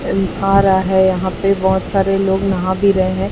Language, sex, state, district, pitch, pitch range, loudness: Hindi, male, Chhattisgarh, Raipur, 190 Hz, 190-195 Hz, -15 LUFS